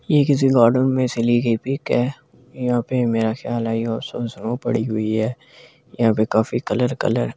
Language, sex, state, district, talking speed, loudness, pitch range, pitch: Hindi, male, Delhi, New Delhi, 205 wpm, -20 LUFS, 115-125 Hz, 120 Hz